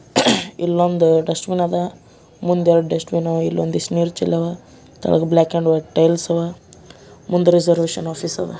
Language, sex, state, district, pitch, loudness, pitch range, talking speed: Kannada, male, Karnataka, Bijapur, 170 Hz, -18 LUFS, 165-175 Hz, 145 wpm